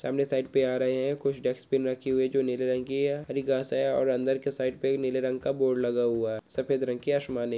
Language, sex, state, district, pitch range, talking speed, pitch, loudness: Hindi, male, Goa, North and South Goa, 130-135 Hz, 285 wpm, 130 Hz, -28 LUFS